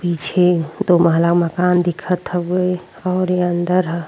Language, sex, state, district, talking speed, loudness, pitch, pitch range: Bhojpuri, female, Uttar Pradesh, Deoria, 145 wpm, -17 LUFS, 175 Hz, 170-180 Hz